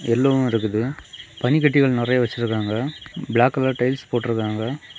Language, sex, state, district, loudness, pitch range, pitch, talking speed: Tamil, male, Tamil Nadu, Kanyakumari, -21 LUFS, 115-130 Hz, 120 Hz, 110 wpm